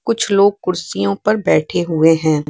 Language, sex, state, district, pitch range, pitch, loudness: Hindi, female, Bihar, West Champaran, 160-200 Hz, 185 Hz, -15 LUFS